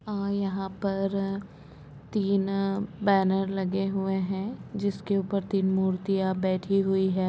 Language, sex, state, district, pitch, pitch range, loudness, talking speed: Hindi, female, Chhattisgarh, Rajnandgaon, 195 Hz, 190-195 Hz, -28 LUFS, 115 wpm